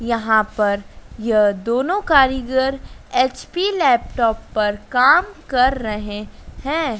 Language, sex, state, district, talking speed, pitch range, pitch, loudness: Hindi, female, Madhya Pradesh, Dhar, 105 wpm, 215-290 Hz, 250 Hz, -18 LUFS